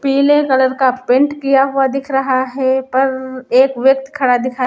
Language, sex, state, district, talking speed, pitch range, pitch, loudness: Hindi, female, Chhattisgarh, Raipur, 180 wpm, 260-270 Hz, 265 Hz, -14 LUFS